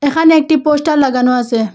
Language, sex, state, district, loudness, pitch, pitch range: Bengali, female, Assam, Hailakandi, -12 LUFS, 290 Hz, 250-310 Hz